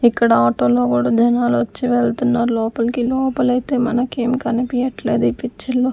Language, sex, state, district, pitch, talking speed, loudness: Telugu, female, Andhra Pradesh, Sri Satya Sai, 235 Hz, 150 wpm, -17 LUFS